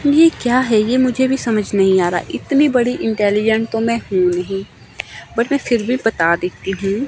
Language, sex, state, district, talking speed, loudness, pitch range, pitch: Hindi, female, Himachal Pradesh, Shimla, 205 wpm, -16 LUFS, 195-255 Hz, 225 Hz